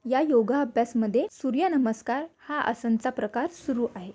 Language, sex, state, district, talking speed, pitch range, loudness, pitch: Marathi, female, Maharashtra, Aurangabad, 160 wpm, 230-280 Hz, -27 LUFS, 250 Hz